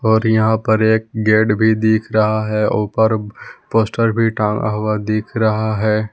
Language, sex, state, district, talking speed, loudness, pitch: Hindi, male, Jharkhand, Palamu, 165 wpm, -16 LUFS, 110 Hz